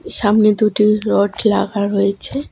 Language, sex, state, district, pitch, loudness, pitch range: Bengali, female, West Bengal, Alipurduar, 210 Hz, -16 LUFS, 205-215 Hz